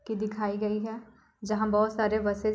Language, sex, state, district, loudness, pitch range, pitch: Hindi, female, Uttar Pradesh, Budaun, -29 LUFS, 210-220 Hz, 215 Hz